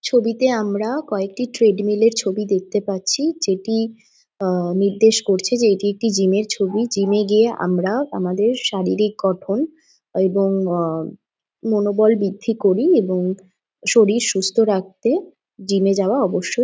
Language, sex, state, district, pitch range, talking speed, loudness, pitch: Bengali, female, West Bengal, Jhargram, 195-225 Hz, 140 wpm, -19 LUFS, 205 Hz